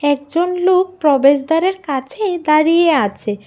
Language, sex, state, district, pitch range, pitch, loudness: Bengali, female, Tripura, West Tripura, 280-360 Hz, 310 Hz, -15 LUFS